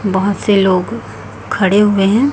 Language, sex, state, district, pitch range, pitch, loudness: Hindi, female, Chhattisgarh, Raipur, 160-205 Hz, 195 Hz, -13 LUFS